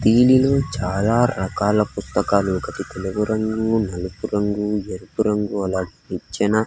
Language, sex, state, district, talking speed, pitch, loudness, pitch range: Telugu, male, Andhra Pradesh, Sri Satya Sai, 115 wpm, 105 Hz, -21 LUFS, 95-110 Hz